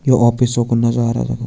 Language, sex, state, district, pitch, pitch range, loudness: Hindi, male, Uttarakhand, Tehri Garhwal, 120 Hz, 115-120 Hz, -16 LUFS